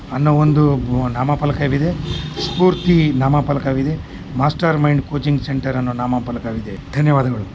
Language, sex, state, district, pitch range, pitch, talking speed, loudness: Kannada, male, Karnataka, Mysore, 125-150 Hz, 145 Hz, 70 wpm, -18 LUFS